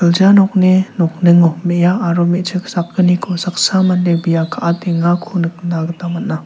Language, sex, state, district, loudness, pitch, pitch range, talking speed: Garo, male, Meghalaya, South Garo Hills, -14 LUFS, 175 Hz, 170-185 Hz, 130 wpm